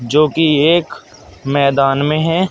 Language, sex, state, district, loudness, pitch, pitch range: Hindi, male, Uttar Pradesh, Saharanpur, -14 LUFS, 145 Hz, 140-160 Hz